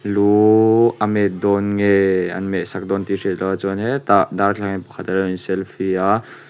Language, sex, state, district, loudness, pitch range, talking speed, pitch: Mizo, male, Mizoram, Aizawl, -18 LUFS, 95-105 Hz, 230 wpm, 100 Hz